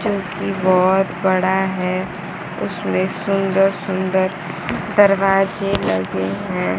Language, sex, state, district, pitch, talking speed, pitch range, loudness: Hindi, female, Bihar, Kaimur, 190 Hz, 95 wpm, 185-195 Hz, -19 LUFS